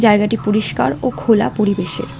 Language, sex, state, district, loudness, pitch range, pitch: Bengali, female, West Bengal, Alipurduar, -17 LUFS, 185-215 Hz, 210 Hz